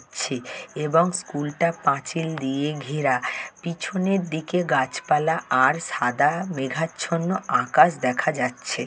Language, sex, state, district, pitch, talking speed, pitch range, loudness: Bengali, male, West Bengal, Jhargram, 160 Hz, 100 wpm, 135-170 Hz, -23 LUFS